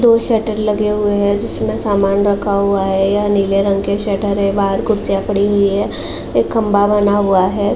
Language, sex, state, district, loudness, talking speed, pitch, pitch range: Hindi, female, Uttar Pradesh, Jalaun, -15 LUFS, 200 wpm, 200 Hz, 195-205 Hz